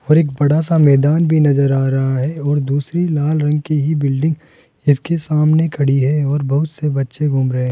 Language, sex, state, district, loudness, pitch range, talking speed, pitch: Hindi, male, Rajasthan, Jaipur, -16 LUFS, 140-155 Hz, 220 wpm, 145 Hz